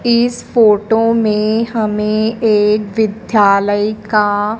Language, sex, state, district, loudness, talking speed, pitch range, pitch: Hindi, female, Madhya Pradesh, Dhar, -14 LUFS, 90 wpm, 210-225 Hz, 215 Hz